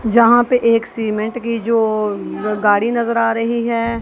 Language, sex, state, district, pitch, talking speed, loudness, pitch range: Hindi, female, Punjab, Kapurthala, 230 Hz, 165 wpm, -16 LUFS, 215-235 Hz